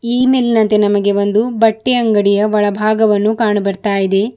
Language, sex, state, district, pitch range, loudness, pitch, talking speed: Kannada, female, Karnataka, Bidar, 205-225 Hz, -13 LUFS, 215 Hz, 110 wpm